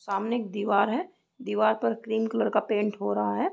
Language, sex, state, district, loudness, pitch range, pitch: Hindi, female, Bihar, East Champaran, -27 LUFS, 205-230 Hz, 215 Hz